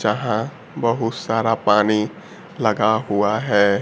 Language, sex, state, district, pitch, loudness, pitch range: Hindi, male, Bihar, Kaimur, 110 Hz, -20 LUFS, 105-120 Hz